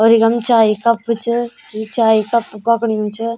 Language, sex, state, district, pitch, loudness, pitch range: Garhwali, female, Uttarakhand, Tehri Garhwal, 230 Hz, -15 LUFS, 220-235 Hz